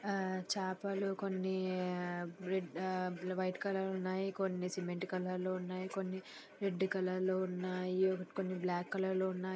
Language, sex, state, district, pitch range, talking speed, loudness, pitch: Telugu, female, Andhra Pradesh, Anantapur, 185-190 Hz, 155 wpm, -38 LUFS, 185 Hz